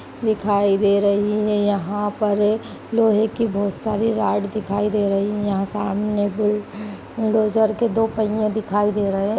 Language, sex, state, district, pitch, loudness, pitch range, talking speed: Hindi, female, Uttar Pradesh, Budaun, 210 Hz, -20 LUFS, 205-215 Hz, 175 wpm